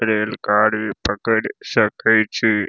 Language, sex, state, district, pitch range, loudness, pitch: Maithili, male, Bihar, Saharsa, 105-110 Hz, -18 LUFS, 110 Hz